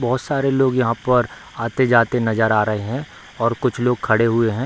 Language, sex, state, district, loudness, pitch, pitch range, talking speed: Hindi, male, Bihar, Darbhanga, -19 LUFS, 120 Hz, 115-130 Hz, 205 wpm